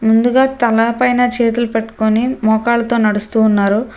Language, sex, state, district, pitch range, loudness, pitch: Telugu, female, Telangana, Hyderabad, 220-240 Hz, -14 LUFS, 230 Hz